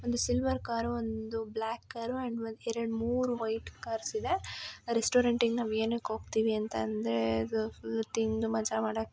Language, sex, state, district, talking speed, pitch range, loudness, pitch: Kannada, male, Karnataka, Chamarajanagar, 160 wpm, 220-235 Hz, -33 LUFS, 225 Hz